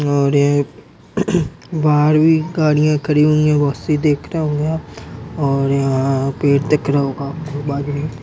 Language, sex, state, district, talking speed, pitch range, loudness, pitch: Hindi, male, Uttar Pradesh, Ghazipur, 110 wpm, 140-150 Hz, -17 LUFS, 145 Hz